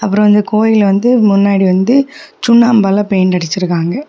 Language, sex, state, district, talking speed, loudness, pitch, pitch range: Tamil, female, Tamil Nadu, Kanyakumari, 130 wpm, -11 LUFS, 205 Hz, 195-235 Hz